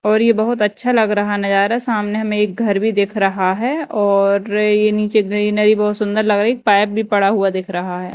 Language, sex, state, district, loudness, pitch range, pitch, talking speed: Hindi, female, Madhya Pradesh, Dhar, -16 LUFS, 200-215 Hz, 210 Hz, 230 wpm